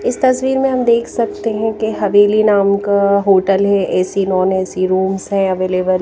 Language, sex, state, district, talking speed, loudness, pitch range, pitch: Hindi, female, Himachal Pradesh, Shimla, 200 wpm, -14 LUFS, 190-220 Hz, 200 Hz